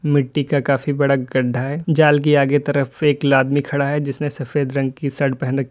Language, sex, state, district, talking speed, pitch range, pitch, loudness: Hindi, male, Uttar Pradesh, Lalitpur, 220 wpm, 135-145 Hz, 140 Hz, -18 LUFS